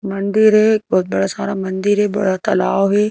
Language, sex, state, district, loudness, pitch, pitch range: Hindi, female, Madhya Pradesh, Bhopal, -16 LUFS, 200 Hz, 190-210 Hz